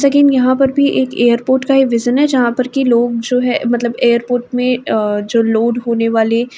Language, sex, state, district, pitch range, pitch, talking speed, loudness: Hindi, female, Uttar Pradesh, Varanasi, 235-260 Hz, 245 Hz, 230 wpm, -14 LUFS